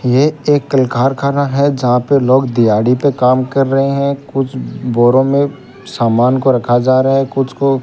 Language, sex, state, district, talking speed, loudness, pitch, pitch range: Hindi, male, Rajasthan, Bikaner, 200 wpm, -13 LUFS, 135 Hz, 125-140 Hz